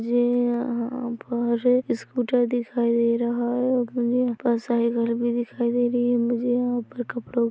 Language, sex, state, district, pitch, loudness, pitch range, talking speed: Hindi, female, Chhattisgarh, Rajnandgaon, 240 Hz, -24 LUFS, 235-245 Hz, 185 wpm